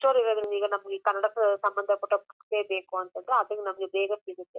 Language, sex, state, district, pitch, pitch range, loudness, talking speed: Kannada, female, Karnataka, Chamarajanagar, 205 Hz, 195-210 Hz, -28 LUFS, 185 wpm